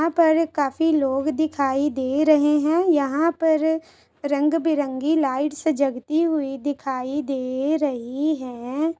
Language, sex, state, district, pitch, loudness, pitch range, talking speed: Hindi, female, Chhattisgarh, Sukma, 295 Hz, -22 LUFS, 275-315 Hz, 125 wpm